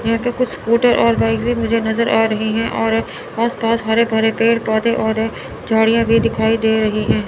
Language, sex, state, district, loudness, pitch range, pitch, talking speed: Hindi, male, Chandigarh, Chandigarh, -16 LUFS, 220-230 Hz, 225 Hz, 215 wpm